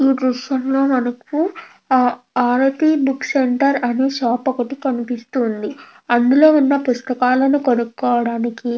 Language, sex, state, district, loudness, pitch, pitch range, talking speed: Telugu, female, Andhra Pradesh, Krishna, -17 LUFS, 255 Hz, 245-275 Hz, 130 wpm